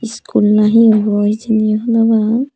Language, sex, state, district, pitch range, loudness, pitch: Chakma, female, Tripura, Dhalai, 210-230 Hz, -13 LUFS, 220 Hz